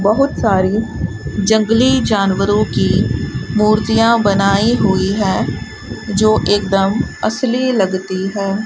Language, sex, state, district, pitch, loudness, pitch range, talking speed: Hindi, female, Rajasthan, Bikaner, 200 Hz, -15 LUFS, 195-220 Hz, 95 wpm